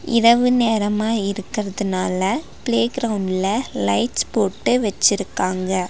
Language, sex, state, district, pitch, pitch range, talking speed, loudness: Tamil, female, Tamil Nadu, Nilgiris, 210 Hz, 190-235 Hz, 70 wpm, -20 LUFS